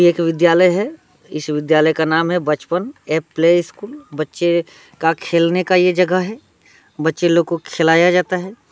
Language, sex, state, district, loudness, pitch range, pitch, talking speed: Hindi, male, Bihar, Muzaffarpur, -16 LUFS, 160-180 Hz, 170 Hz, 180 wpm